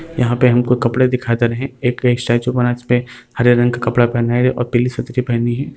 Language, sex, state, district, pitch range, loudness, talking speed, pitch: Hindi, male, Uttar Pradesh, Varanasi, 120-125 Hz, -16 LUFS, 260 wpm, 120 Hz